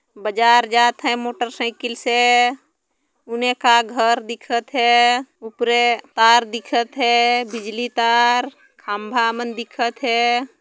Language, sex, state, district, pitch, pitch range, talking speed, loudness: Sadri, female, Chhattisgarh, Jashpur, 240 Hz, 235-245 Hz, 100 wpm, -18 LUFS